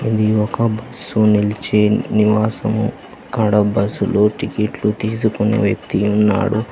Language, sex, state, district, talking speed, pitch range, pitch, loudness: Telugu, male, Telangana, Hyderabad, 100 wpm, 105-110 Hz, 105 Hz, -17 LUFS